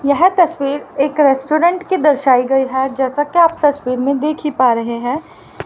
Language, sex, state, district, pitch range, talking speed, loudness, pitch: Hindi, female, Haryana, Rohtak, 265-310 Hz, 180 wpm, -15 LUFS, 285 Hz